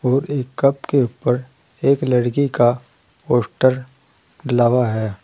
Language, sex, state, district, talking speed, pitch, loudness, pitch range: Hindi, male, Uttar Pradesh, Saharanpur, 125 wpm, 125 Hz, -18 LUFS, 120-135 Hz